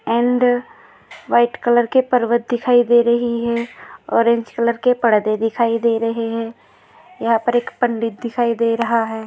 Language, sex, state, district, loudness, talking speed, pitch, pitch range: Hindi, female, Maharashtra, Nagpur, -18 LUFS, 160 wpm, 235 Hz, 230-240 Hz